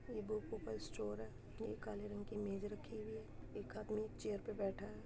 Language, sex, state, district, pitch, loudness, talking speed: Hindi, female, Uttar Pradesh, Muzaffarnagar, 130 Hz, -47 LUFS, 225 wpm